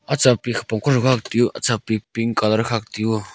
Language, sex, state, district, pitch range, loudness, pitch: Wancho, male, Arunachal Pradesh, Longding, 110-120 Hz, -20 LUFS, 115 Hz